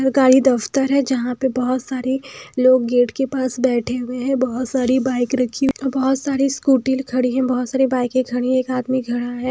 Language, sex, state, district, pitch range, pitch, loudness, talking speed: Hindi, female, Bihar, Patna, 250-265 Hz, 255 Hz, -19 LUFS, 215 wpm